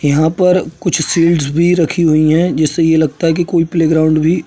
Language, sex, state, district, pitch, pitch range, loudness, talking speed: Hindi, male, Uttar Pradesh, Budaun, 165 Hz, 155-170 Hz, -13 LUFS, 230 wpm